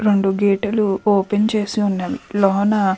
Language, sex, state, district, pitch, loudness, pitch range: Telugu, female, Andhra Pradesh, Krishna, 205 Hz, -18 LUFS, 195-210 Hz